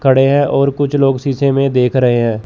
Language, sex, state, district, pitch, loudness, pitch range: Hindi, male, Chandigarh, Chandigarh, 135 Hz, -13 LUFS, 130-140 Hz